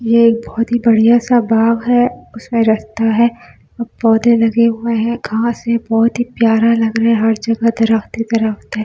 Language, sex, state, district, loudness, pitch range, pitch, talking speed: Hindi, female, Delhi, New Delhi, -14 LUFS, 225-235 Hz, 230 Hz, 195 wpm